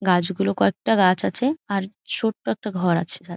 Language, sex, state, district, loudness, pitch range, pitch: Bengali, female, West Bengal, Jhargram, -22 LUFS, 175-210 Hz, 185 Hz